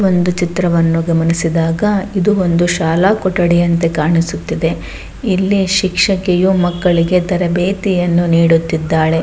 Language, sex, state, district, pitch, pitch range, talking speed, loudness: Kannada, female, Karnataka, Bellary, 175 Hz, 165-185 Hz, 85 wpm, -14 LUFS